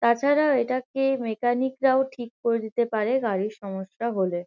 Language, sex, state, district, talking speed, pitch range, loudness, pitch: Bengali, female, West Bengal, Kolkata, 150 wpm, 220-265 Hz, -25 LUFS, 235 Hz